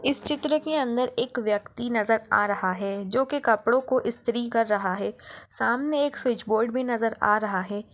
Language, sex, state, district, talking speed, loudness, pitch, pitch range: Hindi, female, Maharashtra, Dhule, 205 wpm, -25 LUFS, 235 Hz, 210-255 Hz